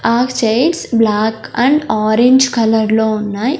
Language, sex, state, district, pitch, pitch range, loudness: Telugu, female, Andhra Pradesh, Sri Satya Sai, 225 Hz, 220-250 Hz, -13 LUFS